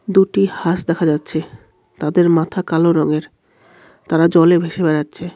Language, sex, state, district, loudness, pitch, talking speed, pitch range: Bengali, male, West Bengal, Cooch Behar, -16 LUFS, 165 Hz, 135 wpm, 160-175 Hz